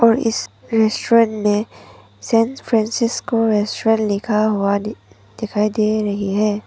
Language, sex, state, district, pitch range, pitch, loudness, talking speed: Hindi, female, Arunachal Pradesh, Papum Pare, 205-225 Hz, 215 Hz, -18 LUFS, 125 wpm